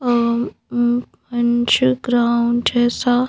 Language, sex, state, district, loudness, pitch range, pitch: Hindi, female, Madhya Pradesh, Bhopal, -18 LUFS, 235-245 Hz, 240 Hz